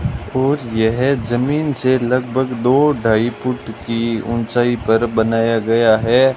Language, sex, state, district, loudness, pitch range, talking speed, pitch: Hindi, male, Rajasthan, Bikaner, -17 LUFS, 115-130 Hz, 130 wpm, 120 Hz